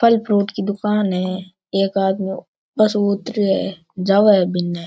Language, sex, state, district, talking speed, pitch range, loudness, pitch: Rajasthani, male, Rajasthan, Churu, 170 wpm, 190-210 Hz, -18 LUFS, 195 Hz